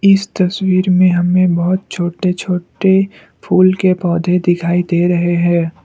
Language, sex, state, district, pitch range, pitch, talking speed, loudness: Hindi, male, Assam, Kamrup Metropolitan, 175-185 Hz, 180 Hz, 145 wpm, -14 LUFS